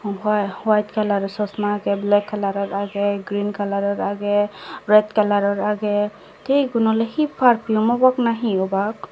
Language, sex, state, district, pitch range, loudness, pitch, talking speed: Chakma, female, Tripura, Dhalai, 200-220 Hz, -20 LUFS, 205 Hz, 180 wpm